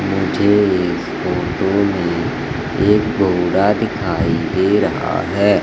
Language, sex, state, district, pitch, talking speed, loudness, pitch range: Hindi, male, Madhya Pradesh, Katni, 95 Hz, 105 wpm, -17 LUFS, 90-100 Hz